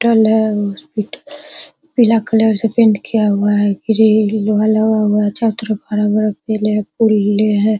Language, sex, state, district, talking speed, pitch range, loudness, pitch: Hindi, female, Bihar, Araria, 170 wpm, 210-225 Hz, -15 LUFS, 215 Hz